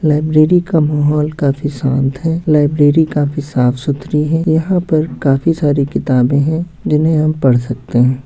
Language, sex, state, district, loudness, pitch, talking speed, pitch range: Hindi, male, Bihar, Muzaffarpur, -14 LUFS, 150 Hz, 155 wpm, 135-160 Hz